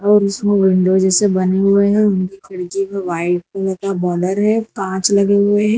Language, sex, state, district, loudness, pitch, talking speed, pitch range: Hindi, female, Gujarat, Valsad, -16 LUFS, 195 Hz, 195 wpm, 185-205 Hz